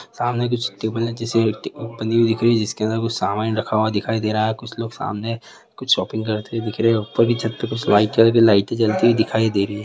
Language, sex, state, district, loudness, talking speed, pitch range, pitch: Hindi, male, Bihar, Gaya, -20 LUFS, 270 wpm, 110-115 Hz, 110 Hz